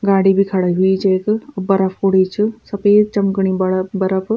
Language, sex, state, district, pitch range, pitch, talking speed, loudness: Garhwali, female, Uttarakhand, Tehri Garhwal, 190-205 Hz, 195 Hz, 190 wpm, -16 LUFS